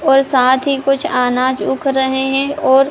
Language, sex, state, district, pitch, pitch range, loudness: Hindi, female, Bihar, Supaul, 270 Hz, 260-275 Hz, -14 LUFS